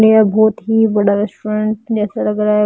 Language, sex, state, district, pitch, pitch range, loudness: Hindi, female, Bihar, Patna, 215 Hz, 210-220 Hz, -15 LUFS